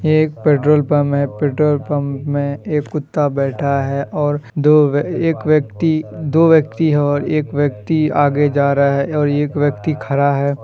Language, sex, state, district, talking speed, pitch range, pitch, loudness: Hindi, male, Bihar, Kishanganj, 165 wpm, 140-155 Hz, 145 Hz, -16 LUFS